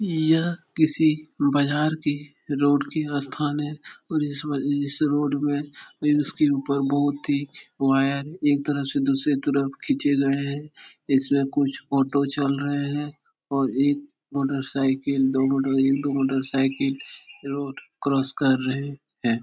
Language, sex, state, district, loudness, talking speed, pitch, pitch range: Hindi, male, Uttar Pradesh, Etah, -24 LUFS, 135 wpm, 140 Hz, 135-150 Hz